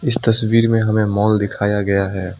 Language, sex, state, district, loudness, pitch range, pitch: Hindi, male, Assam, Kamrup Metropolitan, -16 LUFS, 100-115 Hz, 105 Hz